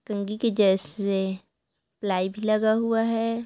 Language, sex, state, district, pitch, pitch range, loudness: Hindi, female, Chhattisgarh, Korba, 210 Hz, 195-225 Hz, -25 LUFS